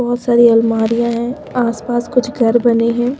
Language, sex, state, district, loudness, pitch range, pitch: Hindi, female, Himachal Pradesh, Shimla, -14 LUFS, 230-245 Hz, 235 Hz